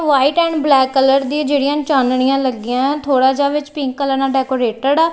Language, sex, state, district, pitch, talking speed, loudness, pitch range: Punjabi, female, Punjab, Kapurthala, 275 Hz, 185 wpm, -15 LUFS, 265-290 Hz